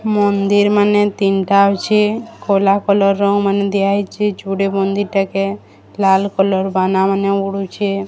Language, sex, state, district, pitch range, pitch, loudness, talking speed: Odia, female, Odisha, Sambalpur, 195-205 Hz, 200 Hz, -15 LUFS, 140 wpm